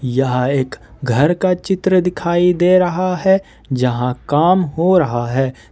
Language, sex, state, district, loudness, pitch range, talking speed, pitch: Hindi, male, Jharkhand, Ranchi, -16 LUFS, 130-180 Hz, 145 wpm, 170 Hz